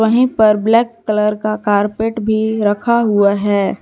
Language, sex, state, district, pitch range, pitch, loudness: Hindi, female, Jharkhand, Garhwa, 205-225 Hz, 215 Hz, -15 LUFS